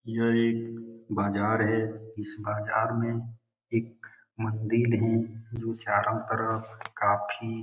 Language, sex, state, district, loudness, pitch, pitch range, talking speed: Hindi, male, Bihar, Jamui, -29 LUFS, 115 Hz, 110-115 Hz, 120 wpm